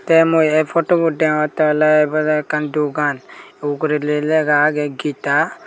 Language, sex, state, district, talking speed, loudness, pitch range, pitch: Chakma, male, Tripura, Dhalai, 135 wpm, -17 LUFS, 150-155 Hz, 150 Hz